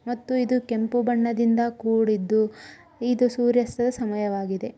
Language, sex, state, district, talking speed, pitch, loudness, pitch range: Kannada, female, Karnataka, Dharwad, 90 wpm, 235 Hz, -24 LUFS, 220-245 Hz